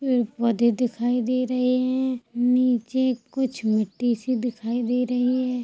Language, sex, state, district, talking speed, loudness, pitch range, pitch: Hindi, female, Chhattisgarh, Sukma, 170 wpm, -23 LUFS, 235-255 Hz, 245 Hz